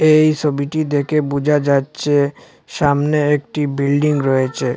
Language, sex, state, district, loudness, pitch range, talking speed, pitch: Bengali, male, Assam, Hailakandi, -17 LUFS, 140-150 Hz, 115 wpm, 145 Hz